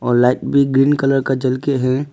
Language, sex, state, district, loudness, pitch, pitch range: Hindi, male, Arunachal Pradesh, Papum Pare, -16 LUFS, 135 Hz, 130-140 Hz